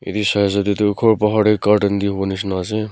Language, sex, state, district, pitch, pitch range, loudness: Nagamese, male, Nagaland, Kohima, 100 Hz, 100-105 Hz, -17 LUFS